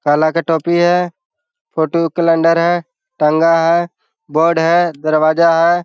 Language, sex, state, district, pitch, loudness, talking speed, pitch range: Hindi, male, Bihar, Jahanabad, 165 Hz, -14 LUFS, 155 wpm, 160-175 Hz